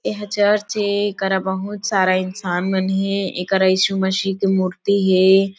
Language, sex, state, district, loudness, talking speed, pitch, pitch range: Chhattisgarhi, female, Chhattisgarh, Sarguja, -19 LUFS, 160 wpm, 195 Hz, 190-200 Hz